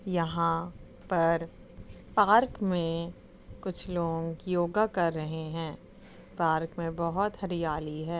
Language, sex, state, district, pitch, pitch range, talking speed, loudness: Hindi, female, Uttar Pradesh, Muzaffarnagar, 170 Hz, 165-185 Hz, 100 wpm, -30 LUFS